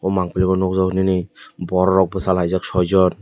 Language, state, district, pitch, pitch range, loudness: Kokborok, Tripura, West Tripura, 95 Hz, 90-95 Hz, -18 LUFS